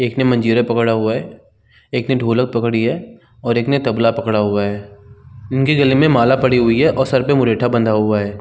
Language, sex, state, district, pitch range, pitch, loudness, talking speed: Hindi, male, Chhattisgarh, Bilaspur, 110-130 Hz, 120 Hz, -16 LUFS, 230 wpm